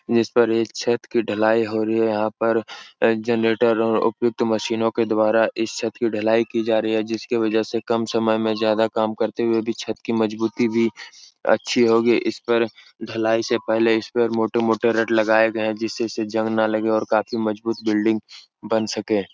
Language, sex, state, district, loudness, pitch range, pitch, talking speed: Hindi, male, Uttar Pradesh, Etah, -21 LUFS, 110-115 Hz, 110 Hz, 205 wpm